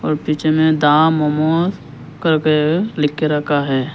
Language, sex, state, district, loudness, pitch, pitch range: Hindi, male, Arunachal Pradesh, Lower Dibang Valley, -16 LUFS, 155 Hz, 150-160 Hz